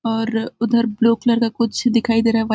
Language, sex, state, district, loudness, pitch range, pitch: Hindi, female, Chhattisgarh, Balrampur, -18 LUFS, 225-235 Hz, 230 Hz